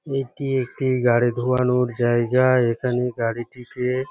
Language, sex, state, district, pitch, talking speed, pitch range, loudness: Bengali, male, West Bengal, Jhargram, 125 Hz, 100 wpm, 120-130 Hz, -21 LUFS